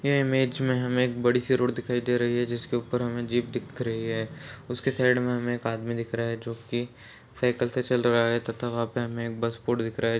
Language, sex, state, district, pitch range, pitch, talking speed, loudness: Hindi, male, Chhattisgarh, Balrampur, 115-125 Hz, 120 Hz, 260 wpm, -27 LUFS